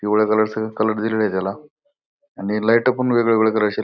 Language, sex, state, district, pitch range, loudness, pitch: Marathi, male, Maharashtra, Aurangabad, 110-120 Hz, -19 LUFS, 110 Hz